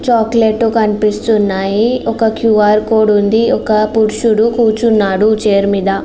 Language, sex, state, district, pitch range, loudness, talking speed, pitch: Telugu, female, Andhra Pradesh, Srikakulam, 210-225 Hz, -12 LUFS, 110 wpm, 215 Hz